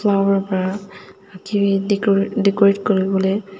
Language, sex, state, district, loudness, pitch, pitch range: Nagamese, female, Nagaland, Dimapur, -18 LUFS, 195 Hz, 195-200 Hz